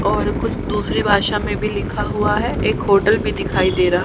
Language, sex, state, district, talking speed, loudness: Hindi, female, Haryana, Charkhi Dadri, 220 wpm, -18 LUFS